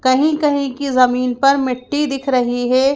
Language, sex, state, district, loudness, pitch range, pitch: Hindi, female, Madhya Pradesh, Bhopal, -16 LUFS, 255-280 Hz, 270 Hz